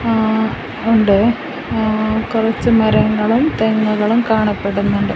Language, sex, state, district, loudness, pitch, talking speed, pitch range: Malayalam, female, Kerala, Kasaragod, -15 LUFS, 220 Hz, 80 wpm, 215-225 Hz